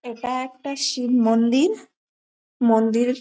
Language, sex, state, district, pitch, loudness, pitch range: Bengali, female, West Bengal, Malda, 250 Hz, -21 LUFS, 235-265 Hz